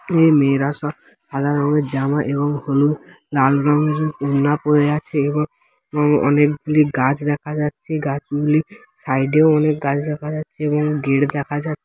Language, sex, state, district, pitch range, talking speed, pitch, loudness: Bengali, male, West Bengal, Dakshin Dinajpur, 140-150 Hz, 150 wpm, 150 Hz, -18 LUFS